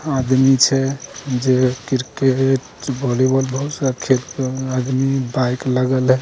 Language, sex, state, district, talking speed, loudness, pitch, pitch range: Angika, male, Bihar, Begusarai, 125 wpm, -18 LUFS, 130 Hz, 130-135 Hz